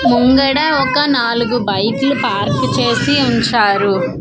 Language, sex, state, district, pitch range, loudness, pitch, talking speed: Telugu, female, Andhra Pradesh, Manyam, 230-275 Hz, -14 LUFS, 240 Hz, 100 wpm